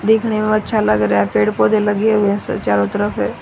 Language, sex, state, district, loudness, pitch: Hindi, female, Haryana, Rohtak, -16 LUFS, 205 Hz